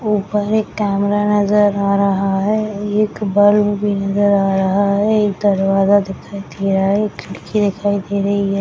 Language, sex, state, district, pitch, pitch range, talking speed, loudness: Hindi, female, Bihar, Madhepura, 200 Hz, 195-210 Hz, 180 wpm, -16 LUFS